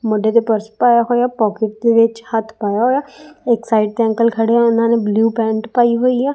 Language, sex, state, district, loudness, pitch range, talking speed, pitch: Punjabi, female, Punjab, Kapurthala, -15 LUFS, 220-240 Hz, 225 wpm, 230 Hz